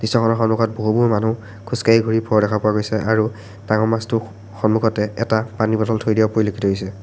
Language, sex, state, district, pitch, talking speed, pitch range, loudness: Assamese, male, Assam, Sonitpur, 110 Hz, 180 wpm, 105-115 Hz, -19 LUFS